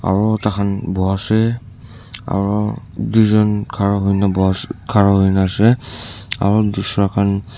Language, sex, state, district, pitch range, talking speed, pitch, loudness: Nagamese, male, Nagaland, Dimapur, 100-110 Hz, 110 wpm, 105 Hz, -17 LUFS